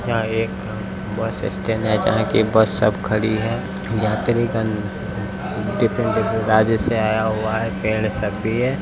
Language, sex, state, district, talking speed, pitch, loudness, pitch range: Hindi, male, Bihar, Araria, 155 wpm, 110 Hz, -20 LUFS, 105-110 Hz